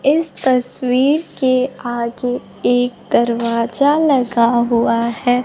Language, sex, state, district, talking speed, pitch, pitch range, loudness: Hindi, female, Bihar, Kaimur, 100 wpm, 245 Hz, 235-260 Hz, -16 LUFS